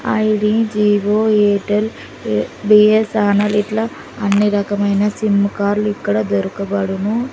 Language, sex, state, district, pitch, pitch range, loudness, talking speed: Telugu, female, Andhra Pradesh, Sri Satya Sai, 210 Hz, 200-215 Hz, -16 LUFS, 100 wpm